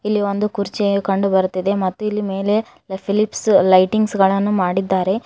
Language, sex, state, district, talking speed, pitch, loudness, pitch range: Kannada, female, Karnataka, Koppal, 135 wpm, 200 Hz, -18 LUFS, 190-210 Hz